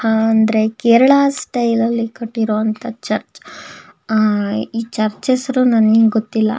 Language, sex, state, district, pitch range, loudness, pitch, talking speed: Kannada, female, Karnataka, Shimoga, 220-235 Hz, -16 LUFS, 225 Hz, 120 wpm